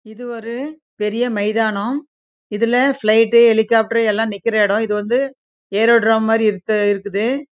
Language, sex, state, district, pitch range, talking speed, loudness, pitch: Tamil, female, Karnataka, Chamarajanagar, 215-245 Hz, 150 wpm, -17 LUFS, 225 Hz